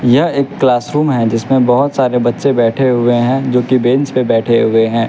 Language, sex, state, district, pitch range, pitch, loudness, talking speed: Hindi, male, Bihar, West Champaran, 120-135 Hz, 125 Hz, -13 LUFS, 225 wpm